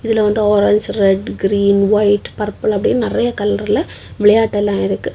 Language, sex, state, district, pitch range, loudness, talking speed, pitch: Tamil, female, Tamil Nadu, Kanyakumari, 205-210 Hz, -15 LUFS, 140 wpm, 210 Hz